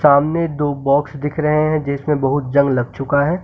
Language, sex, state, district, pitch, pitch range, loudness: Hindi, male, Uttar Pradesh, Lucknow, 145 Hz, 140-150 Hz, -17 LUFS